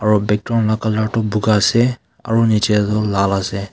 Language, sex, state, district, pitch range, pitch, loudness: Nagamese, male, Nagaland, Kohima, 105-110 Hz, 110 Hz, -17 LUFS